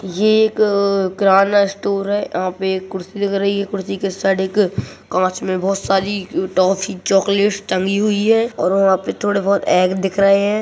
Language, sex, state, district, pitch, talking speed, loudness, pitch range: Hindi, male, Uttarakhand, Uttarkashi, 195 Hz, 200 wpm, -17 LUFS, 190-200 Hz